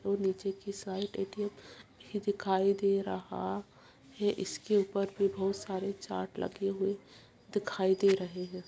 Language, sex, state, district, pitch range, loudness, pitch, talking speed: Hindi, female, Bihar, Purnia, 185-200 Hz, -33 LUFS, 195 Hz, 150 wpm